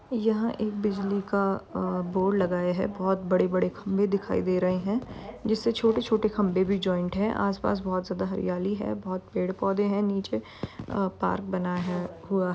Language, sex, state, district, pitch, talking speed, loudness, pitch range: Hindi, female, Uttar Pradesh, Varanasi, 195 Hz, 175 wpm, -28 LUFS, 185-205 Hz